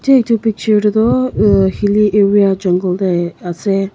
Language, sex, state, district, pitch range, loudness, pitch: Nagamese, female, Nagaland, Kohima, 190-215 Hz, -13 LUFS, 205 Hz